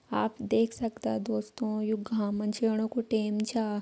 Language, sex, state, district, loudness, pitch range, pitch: Garhwali, female, Uttarakhand, Uttarkashi, -31 LUFS, 210-225 Hz, 220 Hz